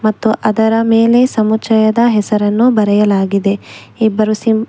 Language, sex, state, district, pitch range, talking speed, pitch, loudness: Kannada, female, Karnataka, Bangalore, 210-225 Hz, 115 wpm, 220 Hz, -12 LUFS